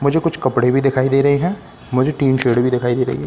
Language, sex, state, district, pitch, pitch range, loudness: Hindi, male, Bihar, Katihar, 130 Hz, 125-140 Hz, -17 LUFS